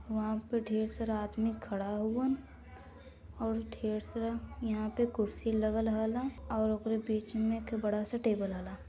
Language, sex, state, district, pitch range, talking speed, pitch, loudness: Hindi, female, Uttar Pradesh, Varanasi, 210-225 Hz, 160 wpm, 220 Hz, -35 LUFS